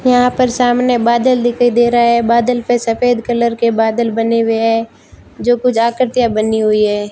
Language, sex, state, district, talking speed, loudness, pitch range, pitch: Hindi, female, Rajasthan, Barmer, 195 wpm, -13 LUFS, 225-245 Hz, 235 Hz